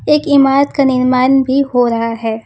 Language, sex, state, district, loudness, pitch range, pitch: Hindi, female, Jharkhand, Ranchi, -12 LUFS, 245-275 Hz, 260 Hz